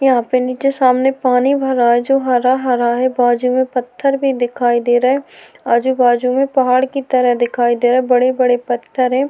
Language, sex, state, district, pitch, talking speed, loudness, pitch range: Hindi, female, Uttar Pradesh, Hamirpur, 255 Hz, 195 wpm, -15 LUFS, 245-265 Hz